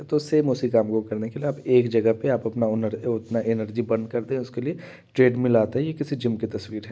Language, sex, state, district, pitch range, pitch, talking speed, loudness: Hindi, male, Uttar Pradesh, Varanasi, 110-125 Hz, 115 Hz, 240 wpm, -24 LUFS